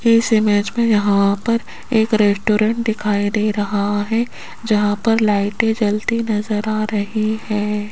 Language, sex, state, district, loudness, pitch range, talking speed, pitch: Hindi, female, Rajasthan, Jaipur, -18 LUFS, 205-225 Hz, 145 wpm, 215 Hz